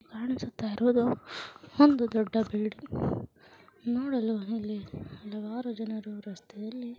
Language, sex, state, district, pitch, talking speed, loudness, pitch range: Kannada, female, Karnataka, Chamarajanagar, 225 Hz, 95 wpm, -30 LUFS, 215-240 Hz